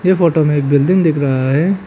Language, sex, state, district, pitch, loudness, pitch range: Hindi, male, Arunachal Pradesh, Papum Pare, 155 Hz, -13 LUFS, 140-185 Hz